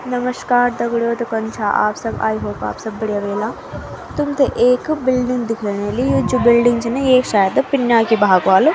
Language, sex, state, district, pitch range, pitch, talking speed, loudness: Garhwali, female, Uttarakhand, Tehri Garhwal, 205-250 Hz, 235 Hz, 190 wpm, -17 LUFS